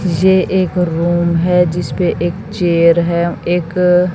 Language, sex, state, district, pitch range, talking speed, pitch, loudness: Hindi, female, Haryana, Jhajjar, 170-180 Hz, 130 wpm, 175 Hz, -14 LUFS